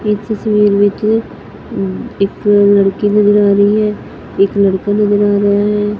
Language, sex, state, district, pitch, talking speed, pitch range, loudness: Punjabi, female, Punjab, Fazilka, 205 Hz, 150 wpm, 200-210 Hz, -12 LUFS